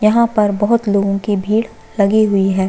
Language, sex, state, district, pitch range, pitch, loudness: Hindi, female, Chhattisgarh, Bastar, 200-220 Hz, 205 Hz, -15 LUFS